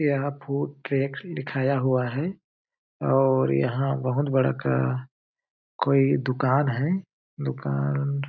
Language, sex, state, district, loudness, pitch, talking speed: Hindi, male, Chhattisgarh, Balrampur, -25 LUFS, 130 Hz, 115 wpm